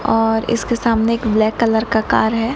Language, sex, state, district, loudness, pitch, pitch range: Hindi, female, Odisha, Nuapada, -16 LUFS, 225 Hz, 220-230 Hz